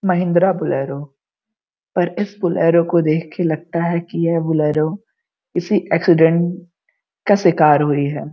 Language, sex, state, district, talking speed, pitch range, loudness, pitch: Hindi, female, Uttar Pradesh, Gorakhpur, 130 wpm, 155-180 Hz, -17 LUFS, 170 Hz